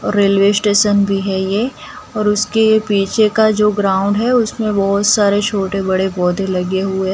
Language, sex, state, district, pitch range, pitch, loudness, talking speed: Hindi, female, Gujarat, Gandhinagar, 195-210 Hz, 200 Hz, -15 LUFS, 175 wpm